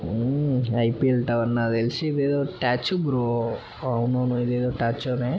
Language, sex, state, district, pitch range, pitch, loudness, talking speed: Telugu, male, Telangana, Nalgonda, 120-130 Hz, 125 Hz, -24 LUFS, 145 wpm